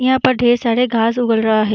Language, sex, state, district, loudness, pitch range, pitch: Hindi, female, Bihar, Vaishali, -15 LUFS, 225-250 Hz, 240 Hz